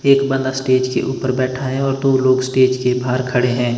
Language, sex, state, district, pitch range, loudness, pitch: Hindi, male, Himachal Pradesh, Shimla, 125-130 Hz, -17 LUFS, 130 Hz